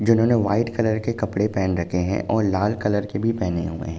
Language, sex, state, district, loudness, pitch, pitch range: Hindi, male, Uttar Pradesh, Jalaun, -22 LUFS, 105 Hz, 95-115 Hz